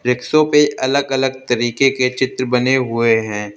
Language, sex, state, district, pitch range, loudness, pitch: Hindi, male, Uttar Pradesh, Lalitpur, 120-135 Hz, -16 LUFS, 130 Hz